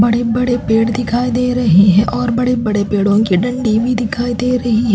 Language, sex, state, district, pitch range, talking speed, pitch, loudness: Hindi, female, Chhattisgarh, Raipur, 215-245 Hz, 220 wpm, 235 Hz, -14 LUFS